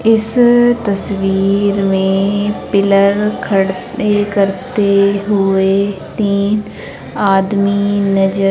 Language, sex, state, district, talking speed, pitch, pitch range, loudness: Hindi, female, Madhya Pradesh, Umaria, 70 wpm, 200 Hz, 195-205 Hz, -14 LUFS